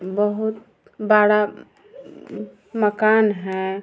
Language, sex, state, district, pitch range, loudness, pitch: Hindi, female, Bihar, Vaishali, 205-220 Hz, -19 LUFS, 210 Hz